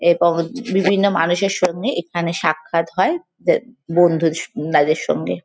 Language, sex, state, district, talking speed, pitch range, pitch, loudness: Bengali, female, West Bengal, Kolkata, 130 wpm, 165-195 Hz, 170 Hz, -18 LUFS